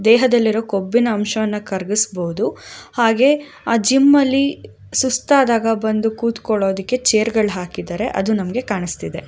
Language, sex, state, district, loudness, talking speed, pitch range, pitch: Kannada, female, Karnataka, Raichur, -17 LUFS, 110 wpm, 210-250 Hz, 225 Hz